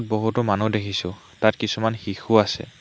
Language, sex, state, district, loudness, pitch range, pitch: Assamese, male, Assam, Hailakandi, -22 LUFS, 100-110 Hz, 110 Hz